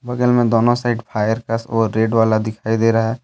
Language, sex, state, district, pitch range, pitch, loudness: Hindi, male, Jharkhand, Deoghar, 110-120 Hz, 115 Hz, -17 LUFS